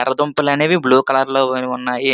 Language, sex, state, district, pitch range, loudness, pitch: Telugu, male, Andhra Pradesh, Srikakulam, 130-145 Hz, -16 LUFS, 135 Hz